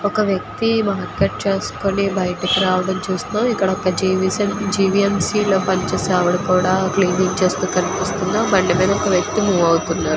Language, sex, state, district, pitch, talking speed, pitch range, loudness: Telugu, female, Andhra Pradesh, Visakhapatnam, 190 Hz, 55 wpm, 185-200 Hz, -18 LUFS